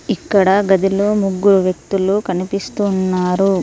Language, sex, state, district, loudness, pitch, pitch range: Telugu, female, Telangana, Mahabubabad, -16 LUFS, 195 Hz, 185-200 Hz